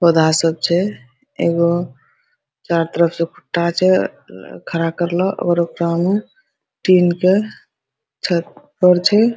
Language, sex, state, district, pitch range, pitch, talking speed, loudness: Hindi, female, Bihar, Araria, 170-185 Hz, 175 Hz, 110 wpm, -17 LUFS